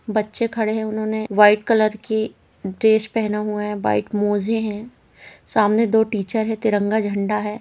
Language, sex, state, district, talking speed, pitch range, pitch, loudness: Hindi, female, Chhattisgarh, Rajnandgaon, 160 wpm, 210-220 Hz, 215 Hz, -20 LUFS